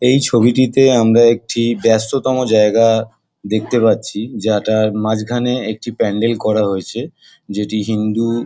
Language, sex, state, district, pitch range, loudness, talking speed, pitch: Bengali, male, West Bengal, Jalpaiguri, 110-120 Hz, -15 LUFS, 125 wpm, 115 Hz